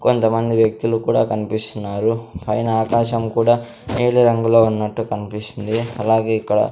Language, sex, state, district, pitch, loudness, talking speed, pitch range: Telugu, male, Andhra Pradesh, Sri Satya Sai, 110 Hz, -18 LUFS, 115 wpm, 110-115 Hz